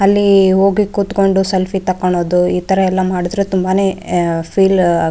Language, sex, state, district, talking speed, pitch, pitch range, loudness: Kannada, female, Karnataka, Raichur, 150 wpm, 190 Hz, 180-195 Hz, -14 LUFS